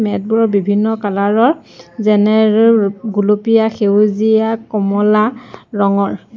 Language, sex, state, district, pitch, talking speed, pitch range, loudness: Assamese, female, Assam, Sonitpur, 215 Hz, 115 wpm, 205-225 Hz, -14 LUFS